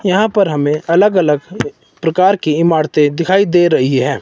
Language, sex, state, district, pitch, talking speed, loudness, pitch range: Hindi, male, Himachal Pradesh, Shimla, 170 Hz, 170 wpm, -13 LUFS, 150-190 Hz